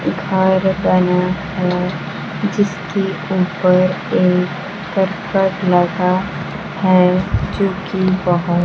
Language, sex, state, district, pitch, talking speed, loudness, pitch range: Hindi, female, Bihar, Kaimur, 185 Hz, 55 wpm, -17 LUFS, 180-195 Hz